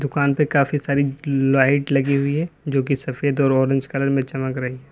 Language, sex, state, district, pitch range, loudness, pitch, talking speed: Hindi, male, Uttar Pradesh, Lalitpur, 135-140 Hz, -20 LUFS, 140 Hz, 220 wpm